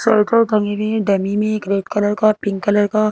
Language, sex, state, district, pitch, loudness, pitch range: Hindi, female, Madhya Pradesh, Bhopal, 210 Hz, -17 LUFS, 205-215 Hz